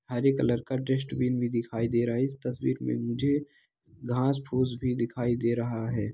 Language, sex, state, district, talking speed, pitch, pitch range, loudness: Hindi, male, Bihar, Araria, 205 wpm, 120 Hz, 115-130 Hz, -29 LUFS